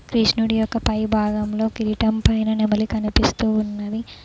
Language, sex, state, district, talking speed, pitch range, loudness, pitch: Telugu, female, Telangana, Mahabubabad, 125 wpm, 215-220 Hz, -21 LUFS, 220 Hz